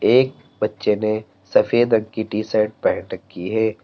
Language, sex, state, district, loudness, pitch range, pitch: Hindi, male, Uttar Pradesh, Lalitpur, -20 LUFS, 105-110 Hz, 110 Hz